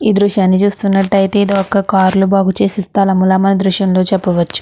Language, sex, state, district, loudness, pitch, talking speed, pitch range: Telugu, female, Andhra Pradesh, Krishna, -12 LUFS, 195 Hz, 180 wpm, 190-200 Hz